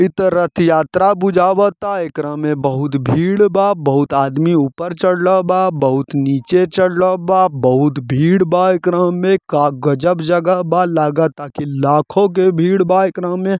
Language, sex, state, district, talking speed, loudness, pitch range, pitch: Bhojpuri, male, Jharkhand, Sahebganj, 160 wpm, -15 LUFS, 145-185 Hz, 175 Hz